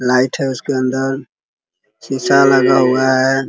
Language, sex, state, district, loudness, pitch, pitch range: Hindi, male, Bihar, Muzaffarpur, -14 LUFS, 130 Hz, 130-135 Hz